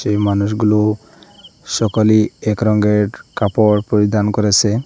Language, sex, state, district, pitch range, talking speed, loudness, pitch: Bengali, male, Assam, Hailakandi, 105-110 Hz, 100 wpm, -15 LUFS, 105 Hz